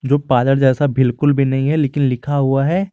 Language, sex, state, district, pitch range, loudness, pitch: Hindi, male, Jharkhand, Garhwa, 135-145 Hz, -16 LUFS, 135 Hz